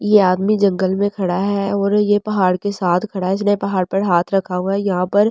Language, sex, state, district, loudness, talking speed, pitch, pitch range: Hindi, female, Delhi, New Delhi, -17 LUFS, 260 wpm, 195 Hz, 185-205 Hz